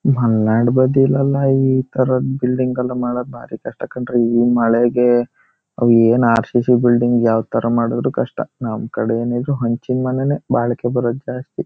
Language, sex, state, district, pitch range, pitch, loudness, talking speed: Kannada, male, Karnataka, Shimoga, 120-130 Hz, 120 Hz, -17 LUFS, 150 wpm